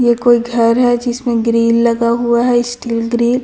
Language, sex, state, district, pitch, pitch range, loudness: Hindi, female, Chhattisgarh, Raipur, 235 Hz, 235-240 Hz, -13 LUFS